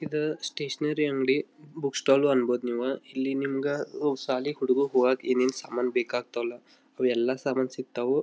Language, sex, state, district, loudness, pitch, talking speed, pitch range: Kannada, male, Karnataka, Belgaum, -28 LUFS, 135 Hz, 155 wpm, 125-145 Hz